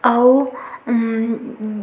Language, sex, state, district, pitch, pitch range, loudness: Chhattisgarhi, female, Chhattisgarh, Sukma, 240 Hz, 225-250 Hz, -18 LUFS